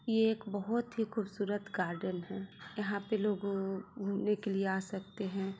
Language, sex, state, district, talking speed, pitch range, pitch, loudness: Hindi, female, Bihar, Sitamarhi, 160 wpm, 195-210 Hz, 200 Hz, -36 LUFS